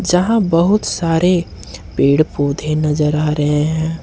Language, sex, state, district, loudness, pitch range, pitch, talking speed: Hindi, male, Jharkhand, Ranchi, -15 LUFS, 150-175 Hz, 160 Hz, 135 wpm